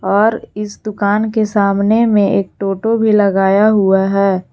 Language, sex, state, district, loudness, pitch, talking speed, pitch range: Hindi, female, Jharkhand, Garhwa, -14 LUFS, 205 Hz, 160 wpm, 195-215 Hz